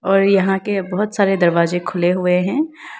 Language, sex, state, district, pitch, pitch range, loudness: Hindi, female, Arunachal Pradesh, Lower Dibang Valley, 195 Hz, 180-200 Hz, -17 LUFS